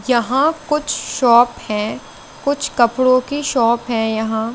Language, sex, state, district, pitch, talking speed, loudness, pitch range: Hindi, female, Chandigarh, Chandigarh, 240 Hz, 130 wpm, -17 LUFS, 230-285 Hz